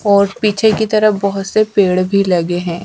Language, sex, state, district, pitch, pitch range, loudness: Hindi, female, Madhya Pradesh, Dhar, 200 Hz, 185-215 Hz, -14 LUFS